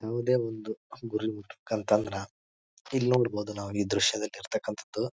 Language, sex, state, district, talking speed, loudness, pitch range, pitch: Kannada, male, Karnataka, Bijapur, 130 wpm, -30 LUFS, 100-115 Hz, 110 Hz